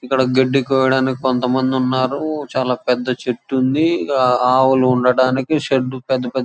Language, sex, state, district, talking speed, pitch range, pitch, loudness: Telugu, male, Andhra Pradesh, Chittoor, 150 wpm, 125-130 Hz, 130 Hz, -17 LUFS